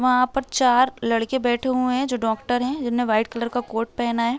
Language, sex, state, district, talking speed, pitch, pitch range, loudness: Hindi, female, Uttar Pradesh, Deoria, 230 wpm, 245 Hz, 235-255 Hz, -22 LUFS